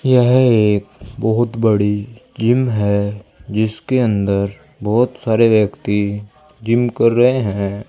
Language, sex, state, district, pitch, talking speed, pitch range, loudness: Hindi, male, Uttar Pradesh, Saharanpur, 110 Hz, 115 wpm, 105-125 Hz, -16 LUFS